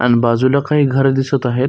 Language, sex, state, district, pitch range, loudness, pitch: Marathi, male, Maharashtra, Solapur, 125-140 Hz, -15 LUFS, 135 Hz